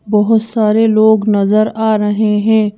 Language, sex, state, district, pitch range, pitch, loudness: Hindi, female, Madhya Pradesh, Bhopal, 210-220 Hz, 215 Hz, -12 LUFS